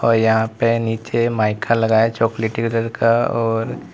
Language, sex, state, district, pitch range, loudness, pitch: Hindi, male, Uttar Pradesh, Lalitpur, 110-115 Hz, -18 LUFS, 115 Hz